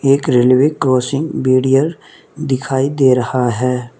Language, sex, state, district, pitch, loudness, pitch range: Hindi, male, Mizoram, Aizawl, 130 Hz, -14 LUFS, 125-140 Hz